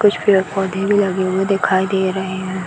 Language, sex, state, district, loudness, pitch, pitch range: Hindi, female, Bihar, Gaya, -17 LUFS, 190 Hz, 190-195 Hz